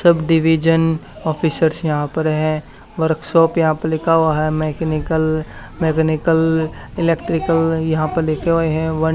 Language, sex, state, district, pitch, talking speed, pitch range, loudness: Hindi, male, Haryana, Charkhi Dadri, 160 Hz, 145 wpm, 155-165 Hz, -17 LUFS